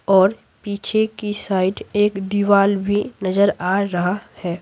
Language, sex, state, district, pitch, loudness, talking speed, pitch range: Hindi, female, Bihar, Patna, 200 Hz, -19 LUFS, 145 wpm, 190-205 Hz